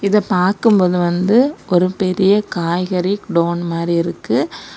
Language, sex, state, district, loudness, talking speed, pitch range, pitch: Tamil, female, Tamil Nadu, Kanyakumari, -16 LUFS, 125 wpm, 175-205 Hz, 185 Hz